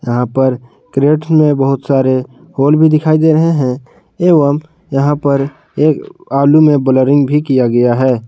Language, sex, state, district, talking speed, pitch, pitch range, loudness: Hindi, male, Jharkhand, Garhwa, 165 wpm, 140 Hz, 130-155 Hz, -12 LUFS